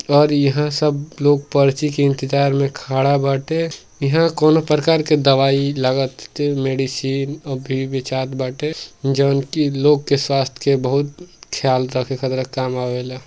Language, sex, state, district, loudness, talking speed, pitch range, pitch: Bhojpuri, male, Uttar Pradesh, Gorakhpur, -18 LUFS, 145 wpm, 135-145 Hz, 140 Hz